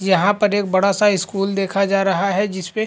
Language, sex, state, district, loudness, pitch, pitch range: Hindi, male, Uttar Pradesh, Varanasi, -18 LUFS, 195 Hz, 195-205 Hz